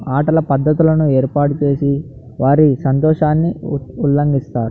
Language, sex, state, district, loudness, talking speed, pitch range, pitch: Telugu, male, Andhra Pradesh, Anantapur, -15 LUFS, 90 wpm, 135-155 Hz, 145 Hz